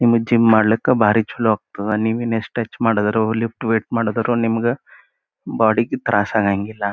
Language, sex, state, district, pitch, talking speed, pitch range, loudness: Kannada, male, Karnataka, Gulbarga, 115 Hz, 155 wpm, 110-115 Hz, -18 LUFS